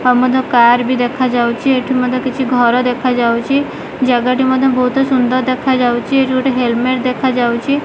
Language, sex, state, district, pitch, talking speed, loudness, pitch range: Odia, female, Odisha, Malkangiri, 255 Hz, 140 wpm, -14 LUFS, 245-260 Hz